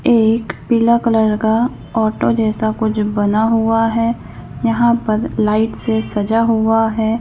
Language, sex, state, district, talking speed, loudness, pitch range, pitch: Hindi, female, Madhya Pradesh, Bhopal, 150 wpm, -16 LUFS, 220-230 Hz, 225 Hz